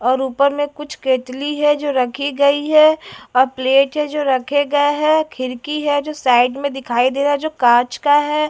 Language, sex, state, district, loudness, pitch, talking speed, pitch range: Hindi, female, Delhi, New Delhi, -17 LUFS, 285 Hz, 210 wpm, 260-295 Hz